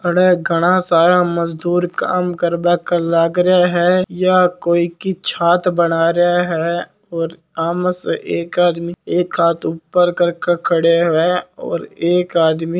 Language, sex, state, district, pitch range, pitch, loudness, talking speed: Marwari, male, Rajasthan, Nagaur, 170-180 Hz, 175 Hz, -16 LUFS, 140 wpm